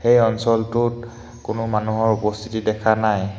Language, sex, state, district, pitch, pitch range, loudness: Assamese, male, Assam, Hailakandi, 110 Hz, 110-120 Hz, -20 LUFS